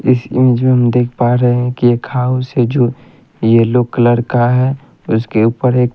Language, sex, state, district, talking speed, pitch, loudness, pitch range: Hindi, male, Haryana, Rohtak, 210 wpm, 125 Hz, -13 LUFS, 120-125 Hz